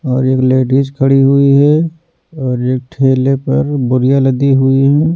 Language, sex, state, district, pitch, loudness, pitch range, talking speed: Hindi, male, Odisha, Nuapada, 135 Hz, -12 LUFS, 130-140 Hz, 165 wpm